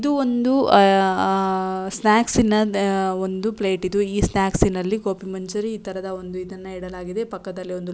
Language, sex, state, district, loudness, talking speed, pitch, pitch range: Kannada, female, Karnataka, Shimoga, -21 LUFS, 165 wpm, 195 Hz, 190-215 Hz